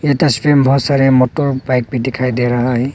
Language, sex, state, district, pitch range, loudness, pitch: Hindi, male, Arunachal Pradesh, Longding, 125-140 Hz, -14 LUFS, 130 Hz